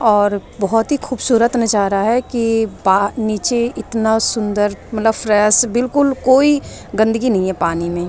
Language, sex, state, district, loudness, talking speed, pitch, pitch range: Hindi, female, Delhi, New Delhi, -16 LUFS, 150 wpm, 225 Hz, 205-240 Hz